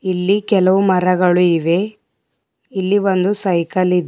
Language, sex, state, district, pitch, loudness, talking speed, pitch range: Kannada, female, Karnataka, Bidar, 185 Hz, -16 LUFS, 120 wpm, 180-195 Hz